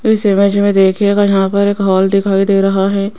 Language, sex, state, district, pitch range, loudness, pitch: Hindi, female, Rajasthan, Jaipur, 195-200 Hz, -12 LUFS, 200 Hz